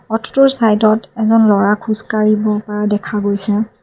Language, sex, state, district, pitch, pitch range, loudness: Assamese, female, Assam, Kamrup Metropolitan, 215 Hz, 210-220 Hz, -14 LUFS